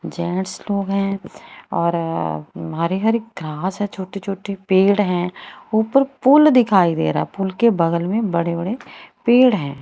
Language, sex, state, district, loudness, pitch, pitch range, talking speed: Hindi, female, Haryana, Rohtak, -19 LUFS, 195 Hz, 170-215 Hz, 155 wpm